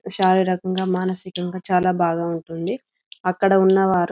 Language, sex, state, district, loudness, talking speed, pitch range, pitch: Telugu, female, Telangana, Karimnagar, -20 LUFS, 115 wpm, 180-190 Hz, 185 Hz